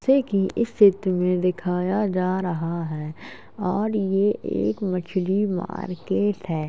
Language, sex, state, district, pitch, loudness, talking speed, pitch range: Hindi, female, Uttar Pradesh, Jalaun, 185 Hz, -23 LUFS, 135 wpm, 180-205 Hz